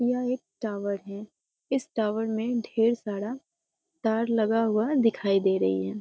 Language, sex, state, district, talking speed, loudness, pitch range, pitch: Hindi, female, Bihar, Muzaffarpur, 170 wpm, -27 LUFS, 205-245 Hz, 225 Hz